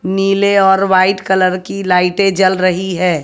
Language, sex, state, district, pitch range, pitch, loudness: Hindi, female, Haryana, Jhajjar, 185-195 Hz, 190 Hz, -13 LUFS